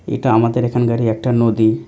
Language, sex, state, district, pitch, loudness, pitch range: Bengali, male, West Bengal, North 24 Parganas, 115 Hz, -16 LUFS, 110-120 Hz